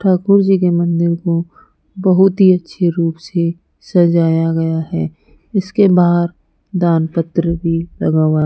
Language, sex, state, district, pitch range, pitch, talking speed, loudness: Hindi, female, Rajasthan, Jaipur, 165-185 Hz, 170 Hz, 150 wpm, -15 LUFS